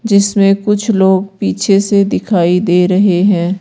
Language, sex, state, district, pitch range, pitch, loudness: Hindi, female, Rajasthan, Jaipur, 180-200 Hz, 195 Hz, -12 LUFS